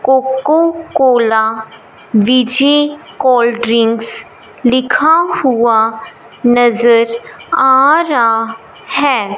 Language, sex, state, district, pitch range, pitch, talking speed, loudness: Hindi, male, Punjab, Fazilka, 230-280 Hz, 245 Hz, 55 wpm, -12 LUFS